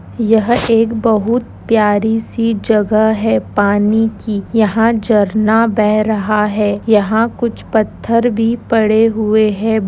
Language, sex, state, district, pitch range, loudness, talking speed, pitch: Hindi, female, Bihar, Bhagalpur, 210-225 Hz, -14 LUFS, 120 wpm, 220 Hz